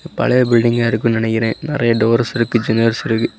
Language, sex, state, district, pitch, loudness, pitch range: Tamil, male, Tamil Nadu, Kanyakumari, 115 Hz, -16 LUFS, 115-120 Hz